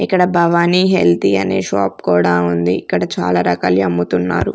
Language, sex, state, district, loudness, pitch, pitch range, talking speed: Telugu, female, Andhra Pradesh, Sri Satya Sai, -15 LUFS, 90 Hz, 90-115 Hz, 145 wpm